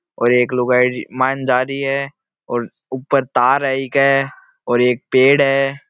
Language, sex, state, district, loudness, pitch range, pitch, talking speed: Marwari, male, Rajasthan, Nagaur, -16 LUFS, 125-135 Hz, 130 Hz, 160 wpm